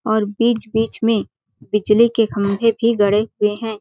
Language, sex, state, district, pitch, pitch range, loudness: Hindi, female, Chhattisgarh, Balrampur, 220 Hz, 210-230 Hz, -18 LUFS